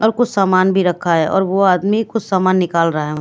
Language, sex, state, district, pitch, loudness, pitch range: Hindi, female, Bihar, Katihar, 190 Hz, -15 LUFS, 175-200 Hz